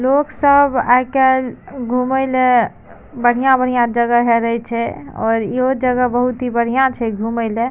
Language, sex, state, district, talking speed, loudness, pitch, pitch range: Maithili, female, Bihar, Madhepura, 140 wpm, -16 LUFS, 250 Hz, 235-260 Hz